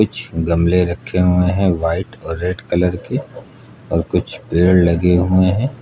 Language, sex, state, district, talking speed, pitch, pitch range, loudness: Hindi, male, Uttar Pradesh, Lucknow, 165 wpm, 90 Hz, 85-95 Hz, -17 LUFS